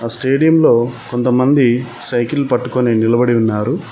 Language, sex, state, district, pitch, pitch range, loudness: Telugu, male, Telangana, Mahabubabad, 125 Hz, 120-130 Hz, -14 LUFS